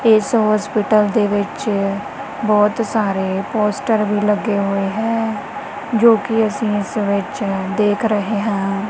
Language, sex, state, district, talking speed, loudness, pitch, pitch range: Punjabi, female, Punjab, Kapurthala, 120 wpm, -18 LUFS, 210 Hz, 205-220 Hz